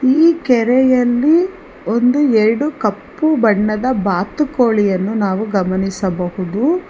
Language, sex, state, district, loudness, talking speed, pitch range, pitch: Kannada, female, Karnataka, Bangalore, -15 LUFS, 70 wpm, 200-275 Hz, 235 Hz